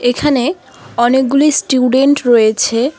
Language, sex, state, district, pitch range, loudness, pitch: Bengali, female, West Bengal, Alipurduar, 240-285 Hz, -12 LUFS, 255 Hz